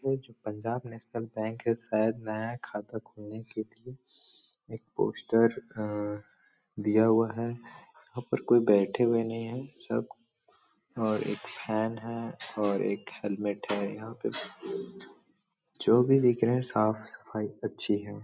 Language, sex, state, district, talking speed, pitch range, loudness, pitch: Hindi, male, Bihar, Supaul, 145 wpm, 105-115 Hz, -30 LUFS, 115 Hz